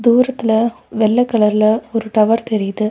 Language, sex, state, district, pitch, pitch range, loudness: Tamil, female, Tamil Nadu, Nilgiris, 220 Hz, 215-235 Hz, -15 LUFS